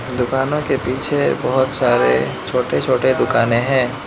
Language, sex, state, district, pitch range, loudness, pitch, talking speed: Hindi, male, Manipur, Imphal West, 125-135 Hz, -17 LUFS, 130 Hz, 130 wpm